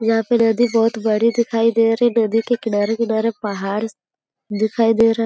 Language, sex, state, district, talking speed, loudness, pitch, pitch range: Hindi, female, Uttar Pradesh, Gorakhpur, 205 wpm, -18 LUFS, 225 Hz, 220-230 Hz